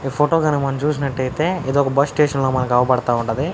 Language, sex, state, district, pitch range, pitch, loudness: Telugu, male, Andhra Pradesh, Anantapur, 130-150 Hz, 135 Hz, -18 LUFS